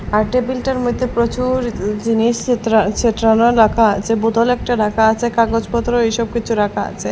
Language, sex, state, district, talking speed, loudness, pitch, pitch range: Bengali, female, Assam, Hailakandi, 160 wpm, -16 LUFS, 230 Hz, 220-240 Hz